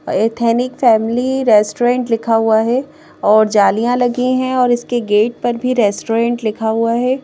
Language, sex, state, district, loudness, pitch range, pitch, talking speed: Hindi, female, Madhya Pradesh, Bhopal, -15 LUFS, 220-250 Hz, 235 Hz, 155 wpm